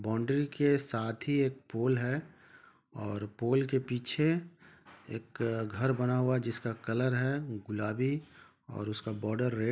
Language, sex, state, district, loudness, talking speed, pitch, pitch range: Hindi, male, Jharkhand, Sahebganj, -33 LUFS, 155 wpm, 125 Hz, 115-140 Hz